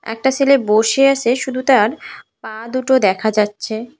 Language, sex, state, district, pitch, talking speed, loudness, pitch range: Bengali, female, West Bengal, Cooch Behar, 245 Hz, 150 wpm, -16 LUFS, 220-265 Hz